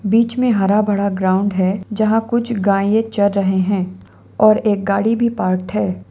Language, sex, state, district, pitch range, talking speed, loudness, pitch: Hindi, female, Assam, Sonitpur, 190-220 Hz, 175 wpm, -17 LUFS, 200 Hz